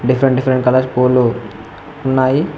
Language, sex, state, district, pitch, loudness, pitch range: Telugu, male, Telangana, Mahabubabad, 130 Hz, -14 LUFS, 125-130 Hz